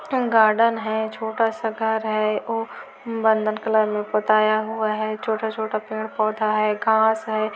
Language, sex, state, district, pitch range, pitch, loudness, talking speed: Hindi, female, Chhattisgarh, Korba, 215-225 Hz, 220 Hz, -22 LUFS, 145 wpm